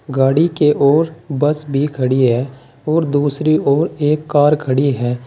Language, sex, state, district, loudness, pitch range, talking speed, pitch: Hindi, male, Uttar Pradesh, Saharanpur, -15 LUFS, 135-155 Hz, 160 wpm, 145 Hz